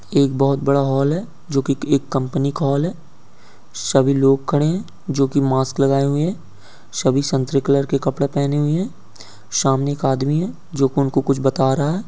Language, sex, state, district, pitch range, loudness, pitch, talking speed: Hindi, male, Uttarakhand, Uttarkashi, 135-145 Hz, -19 LUFS, 140 Hz, 190 wpm